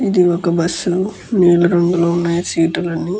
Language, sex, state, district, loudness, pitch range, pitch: Telugu, female, Andhra Pradesh, Guntur, -16 LUFS, 170-180 Hz, 175 Hz